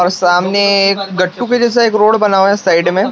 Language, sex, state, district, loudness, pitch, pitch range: Hindi, male, Maharashtra, Washim, -12 LUFS, 195 Hz, 185-215 Hz